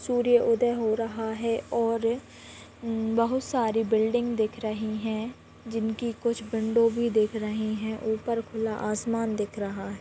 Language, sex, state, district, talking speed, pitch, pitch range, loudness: Hindi, female, Bihar, Muzaffarpur, 155 wpm, 225 Hz, 220-235 Hz, -27 LUFS